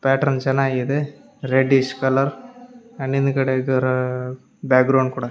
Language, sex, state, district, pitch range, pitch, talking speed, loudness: Kannada, male, Karnataka, Raichur, 130-135 Hz, 135 Hz, 100 wpm, -20 LUFS